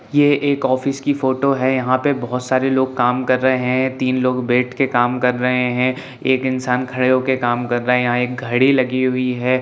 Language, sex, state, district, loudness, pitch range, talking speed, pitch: Hindi, male, Bihar, Saran, -18 LUFS, 125-130 Hz, 235 wpm, 130 Hz